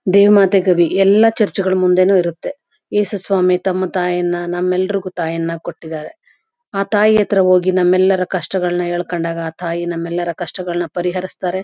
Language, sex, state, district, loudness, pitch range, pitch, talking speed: Kannada, female, Karnataka, Chamarajanagar, -16 LUFS, 175-195 Hz, 185 Hz, 155 wpm